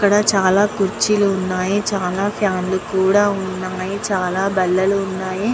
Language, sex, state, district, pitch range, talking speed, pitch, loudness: Telugu, female, Andhra Pradesh, Guntur, 185-205 Hz, 130 wpm, 195 Hz, -18 LUFS